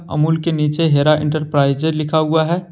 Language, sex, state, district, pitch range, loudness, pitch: Hindi, male, Jharkhand, Deoghar, 150-160 Hz, -16 LUFS, 155 Hz